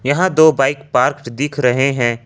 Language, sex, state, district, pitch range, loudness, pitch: Hindi, male, Jharkhand, Ranchi, 125-145 Hz, -15 LUFS, 135 Hz